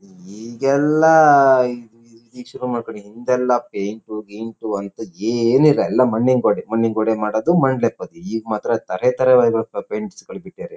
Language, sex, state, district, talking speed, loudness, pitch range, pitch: Kannada, male, Karnataka, Shimoga, 140 wpm, -18 LUFS, 110-130 Hz, 120 Hz